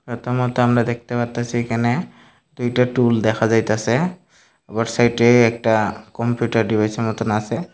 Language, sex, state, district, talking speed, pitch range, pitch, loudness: Bengali, male, Tripura, Unakoti, 130 wpm, 115-120 Hz, 120 Hz, -19 LUFS